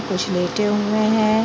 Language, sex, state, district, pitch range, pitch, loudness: Hindi, female, Bihar, Araria, 190-215 Hz, 210 Hz, -19 LUFS